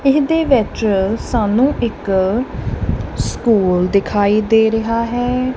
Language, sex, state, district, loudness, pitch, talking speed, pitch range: Punjabi, female, Punjab, Kapurthala, -16 LUFS, 220 Hz, 95 wpm, 190-245 Hz